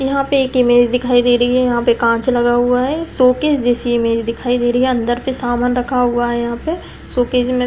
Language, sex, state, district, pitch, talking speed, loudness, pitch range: Hindi, female, Uttar Pradesh, Deoria, 245 Hz, 250 wpm, -15 LUFS, 240-255 Hz